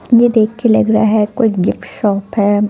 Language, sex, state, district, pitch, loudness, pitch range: Hindi, female, Punjab, Fazilka, 220 Hz, -13 LUFS, 205-230 Hz